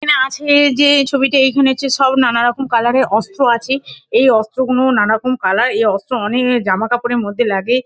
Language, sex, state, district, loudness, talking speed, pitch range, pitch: Bengali, female, West Bengal, Kolkata, -14 LUFS, 175 wpm, 235-270 Hz, 250 Hz